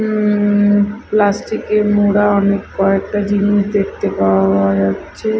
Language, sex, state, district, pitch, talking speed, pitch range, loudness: Bengali, female, Odisha, Malkangiri, 205 Hz, 110 wpm, 195-210 Hz, -15 LUFS